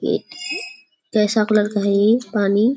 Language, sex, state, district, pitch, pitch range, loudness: Hindi, female, Bihar, Kishanganj, 215 Hz, 205-270 Hz, -19 LUFS